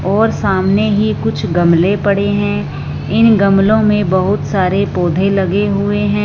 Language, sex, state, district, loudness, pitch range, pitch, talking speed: Hindi, female, Punjab, Fazilka, -13 LUFS, 185-205 Hz, 195 Hz, 155 wpm